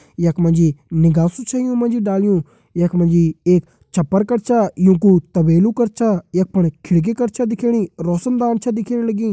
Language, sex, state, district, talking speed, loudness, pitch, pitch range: Hindi, male, Uttarakhand, Tehri Garhwal, 180 wpm, -17 LUFS, 190 Hz, 170-230 Hz